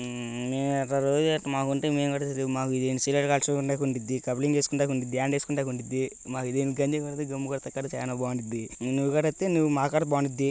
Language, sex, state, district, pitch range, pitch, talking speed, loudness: Telugu, male, Andhra Pradesh, Krishna, 130-145 Hz, 140 Hz, 175 wpm, -28 LUFS